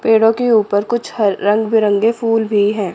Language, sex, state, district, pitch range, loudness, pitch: Hindi, female, Chandigarh, Chandigarh, 205-225 Hz, -15 LUFS, 220 Hz